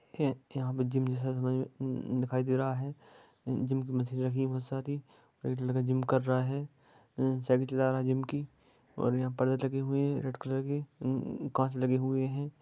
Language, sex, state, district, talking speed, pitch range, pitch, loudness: Hindi, male, Bihar, Gaya, 185 wpm, 130-135 Hz, 130 Hz, -33 LUFS